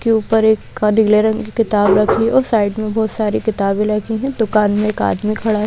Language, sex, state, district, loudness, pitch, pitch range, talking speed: Hindi, female, Madhya Pradesh, Bhopal, -16 LUFS, 215 Hz, 210-225 Hz, 220 wpm